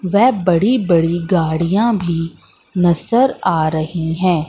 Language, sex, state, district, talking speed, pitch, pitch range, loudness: Hindi, female, Madhya Pradesh, Katni, 120 wpm, 175 Hz, 165-200 Hz, -16 LUFS